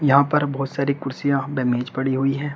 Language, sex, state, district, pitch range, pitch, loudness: Hindi, male, Uttar Pradesh, Shamli, 135-140 Hz, 140 Hz, -22 LUFS